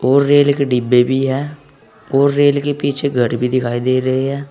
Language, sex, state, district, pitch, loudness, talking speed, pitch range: Hindi, male, Uttar Pradesh, Saharanpur, 135 Hz, -15 LUFS, 215 wpm, 130-140 Hz